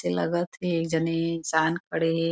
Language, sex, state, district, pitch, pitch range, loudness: Chhattisgarhi, female, Chhattisgarh, Korba, 165 Hz, 160-170 Hz, -26 LUFS